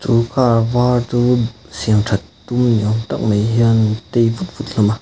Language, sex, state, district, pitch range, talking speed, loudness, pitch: Mizo, male, Mizoram, Aizawl, 110-120 Hz, 190 wpm, -16 LUFS, 115 Hz